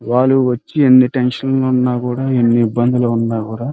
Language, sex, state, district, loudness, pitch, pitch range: Telugu, male, Andhra Pradesh, Krishna, -14 LUFS, 125 Hz, 120-130 Hz